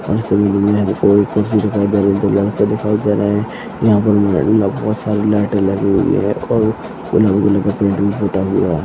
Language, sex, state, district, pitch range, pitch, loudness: Hindi, male, Chhattisgarh, Sarguja, 100-105 Hz, 105 Hz, -15 LUFS